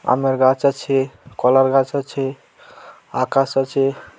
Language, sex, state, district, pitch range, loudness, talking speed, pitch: Bengali, male, West Bengal, Dakshin Dinajpur, 130-135 Hz, -18 LUFS, 130 wpm, 135 Hz